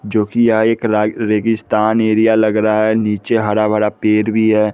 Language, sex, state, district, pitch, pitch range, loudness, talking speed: Hindi, male, Bihar, West Champaran, 110 Hz, 105-110 Hz, -14 LUFS, 190 wpm